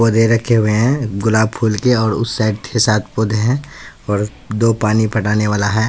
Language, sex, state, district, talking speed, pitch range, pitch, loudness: Hindi, male, Bihar, Katihar, 195 wpm, 105-115 Hz, 110 Hz, -16 LUFS